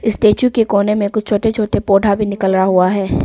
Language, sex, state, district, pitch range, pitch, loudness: Hindi, female, Arunachal Pradesh, Papum Pare, 200-215 Hz, 205 Hz, -14 LUFS